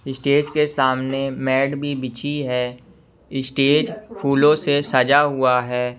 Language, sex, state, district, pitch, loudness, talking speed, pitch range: Hindi, male, Bihar, West Champaran, 135 Hz, -19 LUFS, 130 wpm, 130-145 Hz